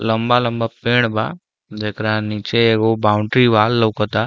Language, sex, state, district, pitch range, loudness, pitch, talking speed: Bhojpuri, male, Uttar Pradesh, Deoria, 105-115 Hz, -17 LUFS, 110 Hz, 125 wpm